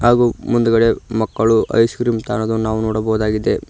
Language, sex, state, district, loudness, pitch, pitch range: Kannada, male, Karnataka, Koppal, -17 LUFS, 110 Hz, 110-115 Hz